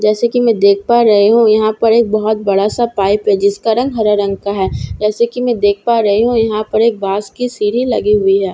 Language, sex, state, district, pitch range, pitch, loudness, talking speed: Hindi, female, Bihar, Katihar, 200-235 Hz, 215 Hz, -13 LUFS, 260 wpm